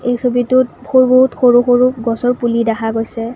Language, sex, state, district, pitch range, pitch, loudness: Assamese, female, Assam, Kamrup Metropolitan, 230-255 Hz, 245 Hz, -13 LUFS